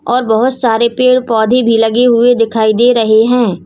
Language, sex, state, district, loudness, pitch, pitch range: Hindi, female, Uttar Pradesh, Lalitpur, -10 LUFS, 235 Hz, 225-245 Hz